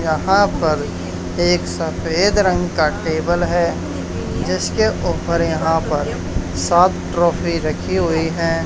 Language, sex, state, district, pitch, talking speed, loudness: Hindi, male, Haryana, Charkhi Dadri, 160 Hz, 120 wpm, -18 LUFS